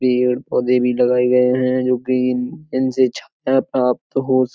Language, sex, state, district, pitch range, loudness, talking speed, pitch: Hindi, male, Uttar Pradesh, Etah, 125-130 Hz, -18 LUFS, 185 wpm, 125 Hz